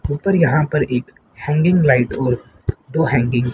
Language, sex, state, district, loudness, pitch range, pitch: Hindi, male, Haryana, Rohtak, -17 LUFS, 125-155 Hz, 140 Hz